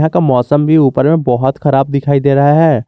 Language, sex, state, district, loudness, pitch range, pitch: Hindi, male, Jharkhand, Garhwa, -11 LUFS, 135-155 Hz, 140 Hz